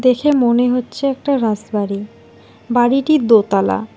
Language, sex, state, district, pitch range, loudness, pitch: Bengali, female, West Bengal, Alipurduar, 220-265 Hz, -16 LUFS, 245 Hz